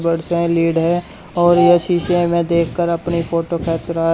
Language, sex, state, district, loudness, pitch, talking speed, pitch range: Hindi, male, Haryana, Charkhi Dadri, -16 LUFS, 170 Hz, 175 wpm, 165-175 Hz